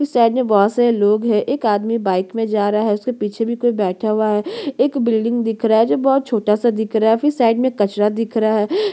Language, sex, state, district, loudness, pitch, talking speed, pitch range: Hindi, female, Chhattisgarh, Korba, -17 LUFS, 225 Hz, 270 wpm, 210-240 Hz